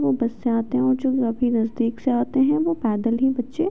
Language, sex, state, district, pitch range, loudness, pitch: Hindi, female, Uttar Pradesh, Gorakhpur, 230-265 Hz, -22 LUFS, 245 Hz